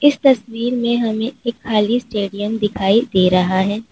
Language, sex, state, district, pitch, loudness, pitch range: Hindi, female, Uttar Pradesh, Lalitpur, 225 Hz, -17 LUFS, 205-240 Hz